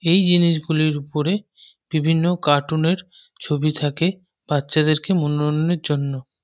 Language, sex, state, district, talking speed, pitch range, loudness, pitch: Bengali, male, West Bengal, North 24 Parganas, 100 wpm, 150-175 Hz, -20 LUFS, 155 Hz